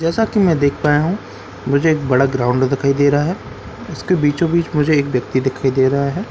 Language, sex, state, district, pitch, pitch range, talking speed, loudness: Hindi, male, Bihar, Katihar, 145 Hz, 130-160 Hz, 220 wpm, -16 LUFS